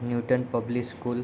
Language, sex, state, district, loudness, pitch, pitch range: Hindi, male, Bihar, Gopalganj, -28 LUFS, 120 Hz, 120-125 Hz